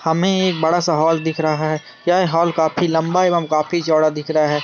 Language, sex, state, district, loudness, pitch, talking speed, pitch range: Hindi, male, Bihar, Jamui, -17 LUFS, 160 Hz, 245 wpm, 155-175 Hz